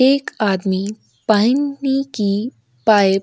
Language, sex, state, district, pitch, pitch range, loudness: Hindi, female, Chhattisgarh, Korba, 215 Hz, 200-265 Hz, -18 LUFS